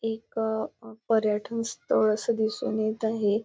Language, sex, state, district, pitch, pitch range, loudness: Marathi, female, Maharashtra, Nagpur, 220 Hz, 215-225 Hz, -27 LUFS